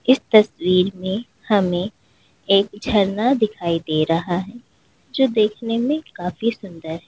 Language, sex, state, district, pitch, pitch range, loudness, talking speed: Hindi, female, Uttar Pradesh, Lalitpur, 200 Hz, 180-230 Hz, -20 LUFS, 125 wpm